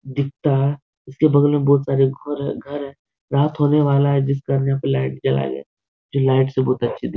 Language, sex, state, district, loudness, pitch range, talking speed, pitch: Hindi, male, Bihar, Supaul, -19 LUFS, 130-140 Hz, 260 wpm, 140 Hz